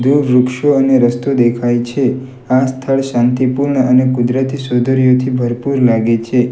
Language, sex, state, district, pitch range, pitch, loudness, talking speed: Gujarati, male, Gujarat, Valsad, 120-130 Hz, 130 Hz, -13 LUFS, 140 wpm